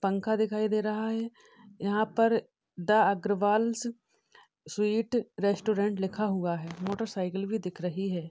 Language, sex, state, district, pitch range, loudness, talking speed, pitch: Hindi, female, Uttar Pradesh, Ghazipur, 195-220 Hz, -29 LUFS, 135 wpm, 210 Hz